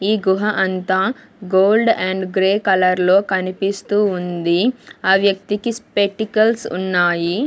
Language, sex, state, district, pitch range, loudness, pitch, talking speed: Telugu, female, Andhra Pradesh, Sri Satya Sai, 185-215 Hz, -17 LUFS, 195 Hz, 110 wpm